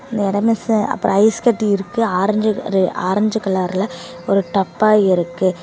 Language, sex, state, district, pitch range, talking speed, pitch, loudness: Tamil, female, Tamil Nadu, Namakkal, 185-215 Hz, 140 wpm, 200 Hz, -17 LUFS